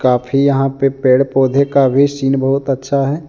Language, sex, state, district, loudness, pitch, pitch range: Hindi, male, Jharkhand, Deoghar, -14 LUFS, 135 Hz, 135-140 Hz